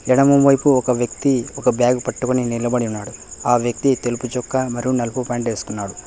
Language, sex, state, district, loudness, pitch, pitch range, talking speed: Telugu, male, Telangana, Hyderabad, -19 LUFS, 125 Hz, 120-130 Hz, 160 wpm